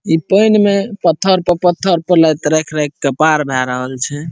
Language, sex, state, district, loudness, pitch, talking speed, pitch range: Maithili, male, Bihar, Saharsa, -14 LUFS, 160 Hz, 210 wpm, 150-185 Hz